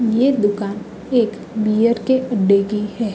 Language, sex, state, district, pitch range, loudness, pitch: Hindi, female, Uttar Pradesh, Hamirpur, 210-235 Hz, -18 LUFS, 215 Hz